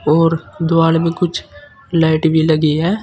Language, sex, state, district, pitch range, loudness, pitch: Hindi, male, Uttar Pradesh, Saharanpur, 155-165 Hz, -15 LUFS, 160 Hz